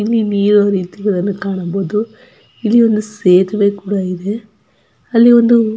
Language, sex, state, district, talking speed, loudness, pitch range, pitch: Kannada, female, Karnataka, Dakshina Kannada, 115 wpm, -14 LUFS, 195-225 Hz, 205 Hz